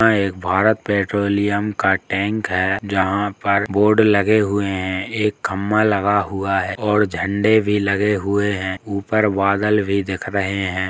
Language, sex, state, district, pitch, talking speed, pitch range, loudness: Hindi, male, Bihar, Purnia, 100 Hz, 165 wpm, 95-105 Hz, -18 LUFS